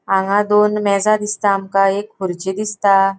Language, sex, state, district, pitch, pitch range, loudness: Konkani, female, Goa, North and South Goa, 200 Hz, 195-210 Hz, -16 LUFS